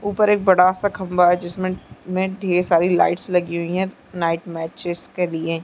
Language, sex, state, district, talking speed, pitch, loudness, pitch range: Hindi, female, Chhattisgarh, Bastar, 180 wpm, 180 Hz, -20 LUFS, 170-185 Hz